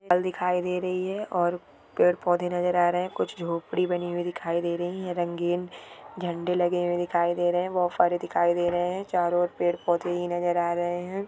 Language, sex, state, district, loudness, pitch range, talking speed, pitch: Hindi, female, Chhattisgarh, Jashpur, -26 LUFS, 175-180 Hz, 230 wpm, 175 Hz